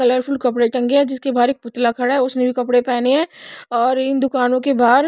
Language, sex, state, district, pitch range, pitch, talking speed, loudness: Hindi, female, Odisha, Nuapada, 245-270 Hz, 250 Hz, 235 wpm, -17 LUFS